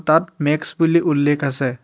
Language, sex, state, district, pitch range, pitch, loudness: Assamese, male, Assam, Hailakandi, 145-165 Hz, 150 Hz, -18 LUFS